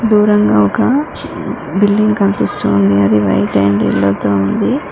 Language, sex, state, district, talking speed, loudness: Telugu, female, Telangana, Mahabubabad, 120 wpm, -13 LUFS